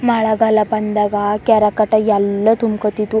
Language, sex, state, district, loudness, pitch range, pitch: Kannada, female, Karnataka, Chamarajanagar, -15 LUFS, 210-220 Hz, 215 Hz